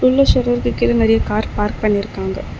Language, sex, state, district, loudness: Tamil, female, Tamil Nadu, Chennai, -17 LUFS